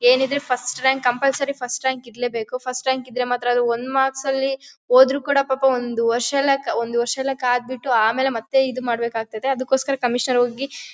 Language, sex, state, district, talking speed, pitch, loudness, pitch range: Kannada, female, Karnataka, Bellary, 180 wpm, 255 Hz, -21 LUFS, 245-270 Hz